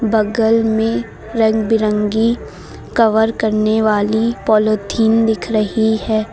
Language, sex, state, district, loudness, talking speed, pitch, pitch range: Hindi, female, Uttar Pradesh, Lucknow, -16 LUFS, 95 wpm, 220 Hz, 215-225 Hz